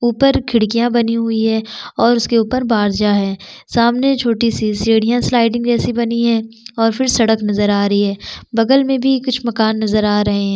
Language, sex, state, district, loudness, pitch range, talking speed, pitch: Hindi, female, Chhattisgarh, Sukma, -15 LUFS, 215-240 Hz, 185 wpm, 230 Hz